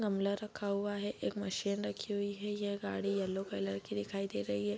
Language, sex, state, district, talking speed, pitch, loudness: Hindi, female, Bihar, Bhagalpur, 225 wpm, 200 Hz, -37 LUFS